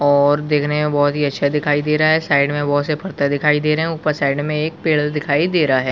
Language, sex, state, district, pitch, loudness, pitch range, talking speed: Hindi, male, Chhattisgarh, Bilaspur, 150 Hz, -17 LUFS, 145-155 Hz, 275 wpm